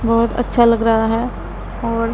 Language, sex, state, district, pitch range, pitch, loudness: Hindi, female, Punjab, Pathankot, 230-235 Hz, 230 Hz, -17 LUFS